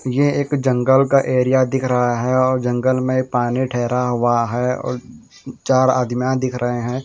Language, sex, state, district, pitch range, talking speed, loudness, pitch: Hindi, male, Haryana, Jhajjar, 125-130 Hz, 180 wpm, -18 LUFS, 130 Hz